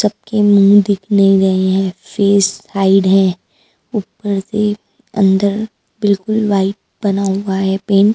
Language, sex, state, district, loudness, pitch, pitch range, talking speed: Hindi, female, Maharashtra, Mumbai Suburban, -14 LUFS, 200 Hz, 195-205 Hz, 140 wpm